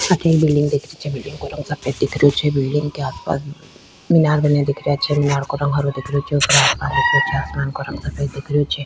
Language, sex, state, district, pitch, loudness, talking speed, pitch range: Rajasthani, female, Rajasthan, Churu, 145 Hz, -18 LUFS, 270 wpm, 140-150 Hz